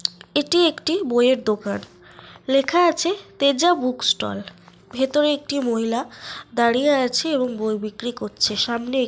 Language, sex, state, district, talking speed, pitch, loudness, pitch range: Bengali, female, Jharkhand, Sahebganj, 140 wpm, 255 Hz, -21 LUFS, 235-295 Hz